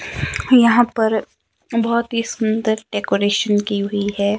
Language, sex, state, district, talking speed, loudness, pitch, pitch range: Hindi, male, Himachal Pradesh, Shimla, 125 wpm, -18 LUFS, 220 Hz, 205-230 Hz